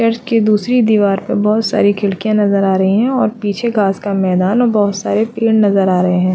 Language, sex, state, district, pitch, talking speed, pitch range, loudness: Hindi, female, Chhattisgarh, Bastar, 210 Hz, 235 wpm, 195-225 Hz, -14 LUFS